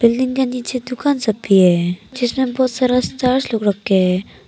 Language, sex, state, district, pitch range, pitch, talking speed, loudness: Hindi, female, Arunachal Pradesh, Papum Pare, 205-255 Hz, 250 Hz, 175 wpm, -17 LUFS